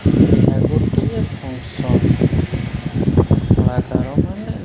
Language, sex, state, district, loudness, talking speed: Odia, male, Odisha, Khordha, -17 LUFS, 75 wpm